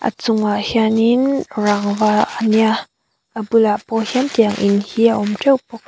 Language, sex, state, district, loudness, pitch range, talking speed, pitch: Mizo, female, Mizoram, Aizawl, -16 LUFS, 210-230 Hz, 185 wpm, 220 Hz